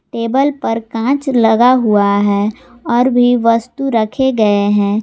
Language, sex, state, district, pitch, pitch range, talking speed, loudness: Hindi, female, Jharkhand, Garhwa, 230 Hz, 215-250 Hz, 145 wpm, -13 LUFS